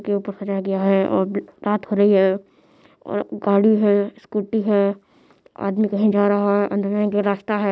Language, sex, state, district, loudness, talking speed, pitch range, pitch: Hindi, female, Bihar, Madhepura, -20 LUFS, 195 wpm, 200-210 Hz, 200 Hz